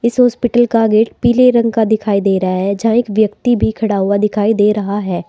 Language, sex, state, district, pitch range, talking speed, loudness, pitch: Hindi, female, Uttar Pradesh, Saharanpur, 200-235 Hz, 240 wpm, -14 LUFS, 215 Hz